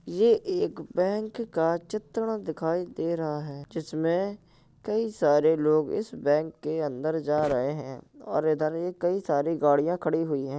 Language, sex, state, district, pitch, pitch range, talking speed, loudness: Hindi, male, Uttar Pradesh, Jalaun, 160 Hz, 150-195 Hz, 165 wpm, -27 LUFS